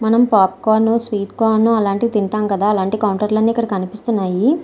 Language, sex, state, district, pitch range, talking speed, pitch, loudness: Telugu, female, Andhra Pradesh, Srikakulam, 200-225 Hz, 155 wpm, 215 Hz, -16 LUFS